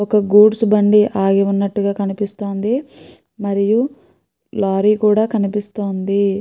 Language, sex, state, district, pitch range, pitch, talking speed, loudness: Telugu, female, Andhra Pradesh, Guntur, 200-210 Hz, 205 Hz, 95 wpm, -16 LUFS